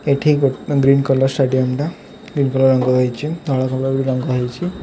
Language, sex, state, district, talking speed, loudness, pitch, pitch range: Odia, male, Odisha, Khordha, 200 wpm, -17 LUFS, 135 Hz, 130-145 Hz